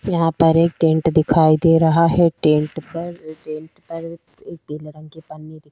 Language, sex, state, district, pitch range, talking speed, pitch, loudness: Hindi, female, Chhattisgarh, Sukma, 155-165 Hz, 180 wpm, 160 Hz, -16 LUFS